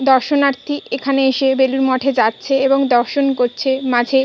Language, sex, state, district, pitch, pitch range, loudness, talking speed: Bengali, female, West Bengal, Kolkata, 265 Hz, 260-275 Hz, -16 LUFS, 140 wpm